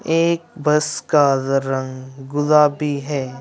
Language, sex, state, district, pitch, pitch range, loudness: Hindi, male, Bihar, Lakhisarai, 145 Hz, 135-150 Hz, -18 LUFS